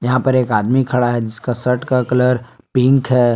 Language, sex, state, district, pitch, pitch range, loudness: Hindi, male, Jharkhand, Palamu, 125 Hz, 120-130 Hz, -16 LUFS